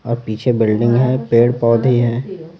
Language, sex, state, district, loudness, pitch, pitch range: Hindi, male, Bihar, Patna, -15 LUFS, 120 Hz, 115-130 Hz